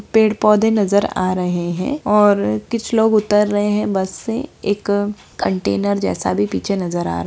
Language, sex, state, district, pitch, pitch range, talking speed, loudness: Hindi, female, Bihar, Begusarai, 200 Hz, 175-210 Hz, 180 wpm, -18 LUFS